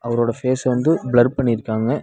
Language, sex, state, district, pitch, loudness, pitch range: Tamil, male, Tamil Nadu, Nilgiris, 120 Hz, -19 LUFS, 120-130 Hz